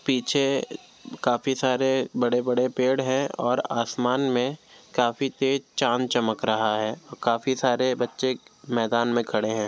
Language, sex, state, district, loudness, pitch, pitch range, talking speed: Hindi, male, Uttar Pradesh, Jyotiba Phule Nagar, -25 LUFS, 125 Hz, 120-130 Hz, 140 wpm